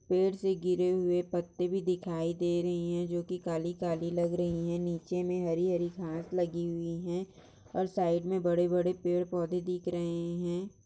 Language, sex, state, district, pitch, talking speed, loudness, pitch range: Hindi, female, Chhattisgarh, Balrampur, 175 Hz, 190 wpm, -32 LUFS, 170-180 Hz